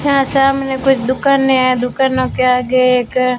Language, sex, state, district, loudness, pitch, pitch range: Hindi, female, Rajasthan, Bikaner, -14 LUFS, 260 Hz, 255-270 Hz